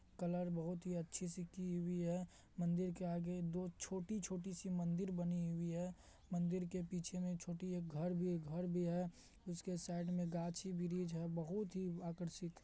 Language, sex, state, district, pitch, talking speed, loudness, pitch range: Hindi, male, Bihar, Madhepura, 175 Hz, 185 wpm, -44 LUFS, 175-180 Hz